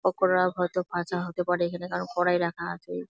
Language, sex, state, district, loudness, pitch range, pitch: Bengali, female, West Bengal, Jalpaiguri, -28 LUFS, 175-180 Hz, 180 Hz